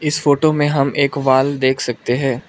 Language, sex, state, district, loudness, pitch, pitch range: Hindi, male, Arunachal Pradesh, Lower Dibang Valley, -16 LUFS, 140 Hz, 130-145 Hz